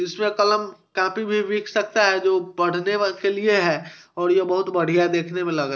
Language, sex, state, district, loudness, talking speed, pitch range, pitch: Hindi, male, Bihar, Sitamarhi, -21 LUFS, 200 wpm, 175-210 Hz, 190 Hz